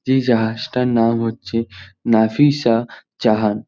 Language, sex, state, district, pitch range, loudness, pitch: Bengali, male, West Bengal, North 24 Parganas, 110-120 Hz, -18 LUFS, 115 Hz